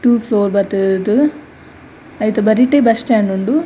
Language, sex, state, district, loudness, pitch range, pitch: Tulu, female, Karnataka, Dakshina Kannada, -14 LUFS, 200-255 Hz, 225 Hz